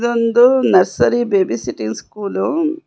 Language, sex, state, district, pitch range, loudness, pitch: Kannada, female, Karnataka, Bangalore, 185-245 Hz, -16 LUFS, 230 Hz